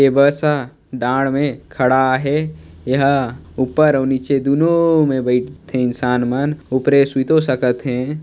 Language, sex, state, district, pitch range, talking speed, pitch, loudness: Chhattisgarhi, male, Chhattisgarh, Sarguja, 130-145 Hz, 160 wpm, 135 Hz, -17 LUFS